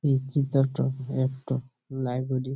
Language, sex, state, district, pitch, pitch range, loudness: Bengali, male, West Bengal, Malda, 130 Hz, 130-135 Hz, -28 LUFS